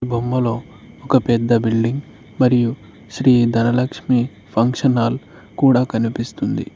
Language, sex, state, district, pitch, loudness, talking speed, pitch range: Telugu, male, Telangana, Mahabubabad, 120 Hz, -18 LUFS, 100 wpm, 115-125 Hz